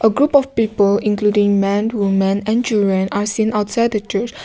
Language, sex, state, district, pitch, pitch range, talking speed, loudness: English, female, Nagaland, Kohima, 210 Hz, 200-225 Hz, 160 wpm, -17 LUFS